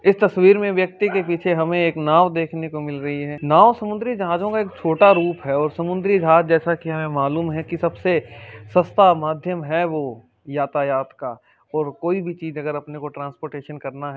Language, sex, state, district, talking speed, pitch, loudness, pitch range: Hindi, male, Rajasthan, Churu, 205 wpm, 160 Hz, -19 LUFS, 145-180 Hz